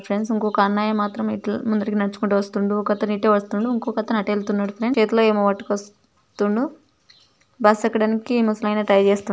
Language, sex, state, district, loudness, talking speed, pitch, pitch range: Telugu, female, Telangana, Nalgonda, -21 LUFS, 165 wpm, 210 Hz, 205-220 Hz